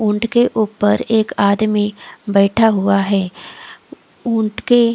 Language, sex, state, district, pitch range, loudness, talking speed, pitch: Hindi, female, Odisha, Khordha, 200-225 Hz, -16 LUFS, 120 wpm, 210 Hz